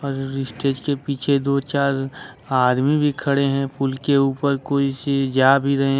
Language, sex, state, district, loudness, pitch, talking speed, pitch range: Hindi, male, Jharkhand, Ranchi, -20 LUFS, 135 Hz, 190 wpm, 135-140 Hz